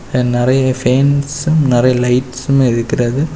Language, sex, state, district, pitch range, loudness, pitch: Tamil, male, Tamil Nadu, Kanyakumari, 125-140 Hz, -13 LUFS, 130 Hz